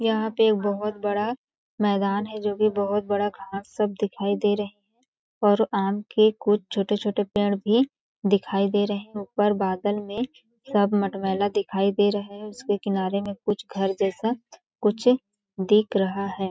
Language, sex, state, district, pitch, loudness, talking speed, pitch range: Hindi, female, Chhattisgarh, Balrampur, 205 Hz, -24 LUFS, 165 wpm, 200-215 Hz